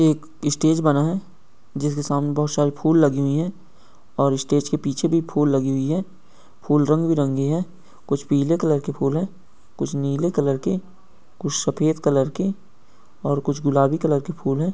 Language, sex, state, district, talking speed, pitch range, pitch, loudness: Hindi, male, Uttar Pradesh, Ghazipur, 185 wpm, 140-165 Hz, 150 Hz, -21 LUFS